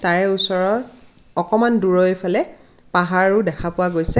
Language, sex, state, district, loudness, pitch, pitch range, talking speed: Assamese, female, Assam, Kamrup Metropolitan, -18 LUFS, 185 Hz, 180-210 Hz, 115 wpm